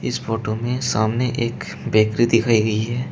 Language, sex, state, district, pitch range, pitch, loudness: Hindi, male, Uttar Pradesh, Shamli, 110-120 Hz, 115 Hz, -20 LUFS